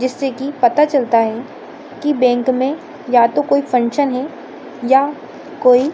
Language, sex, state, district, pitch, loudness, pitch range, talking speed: Hindi, female, Bihar, Samastipur, 265 Hz, -16 LUFS, 250-285 Hz, 160 wpm